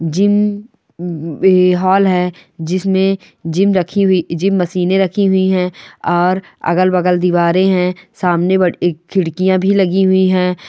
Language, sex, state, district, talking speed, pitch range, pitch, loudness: Hindi, female, Chhattisgarh, Balrampur, 135 wpm, 175-190 Hz, 185 Hz, -14 LUFS